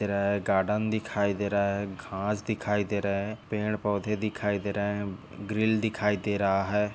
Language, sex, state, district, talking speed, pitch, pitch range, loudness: Hindi, male, Maharashtra, Nagpur, 180 wpm, 105 Hz, 100-105 Hz, -29 LUFS